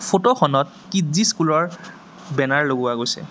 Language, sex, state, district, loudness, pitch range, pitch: Assamese, male, Assam, Sonitpur, -20 LUFS, 140-195 Hz, 170 Hz